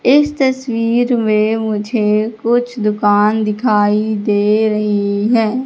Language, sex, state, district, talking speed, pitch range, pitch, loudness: Hindi, female, Madhya Pradesh, Katni, 105 wpm, 210-235 Hz, 220 Hz, -15 LUFS